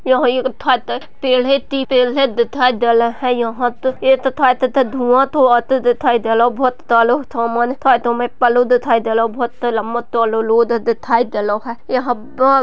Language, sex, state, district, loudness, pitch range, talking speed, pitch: Hindi, female, Maharashtra, Sindhudurg, -15 LUFS, 235-260 Hz, 165 wpm, 245 Hz